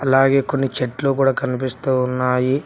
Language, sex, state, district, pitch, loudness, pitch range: Telugu, male, Telangana, Hyderabad, 130 Hz, -19 LUFS, 125-135 Hz